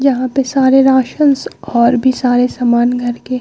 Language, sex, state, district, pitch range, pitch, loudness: Hindi, female, Bihar, Vaishali, 245-265 Hz, 255 Hz, -13 LUFS